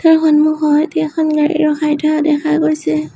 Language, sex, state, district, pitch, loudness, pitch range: Assamese, female, Assam, Sonitpur, 305 Hz, -14 LUFS, 300-315 Hz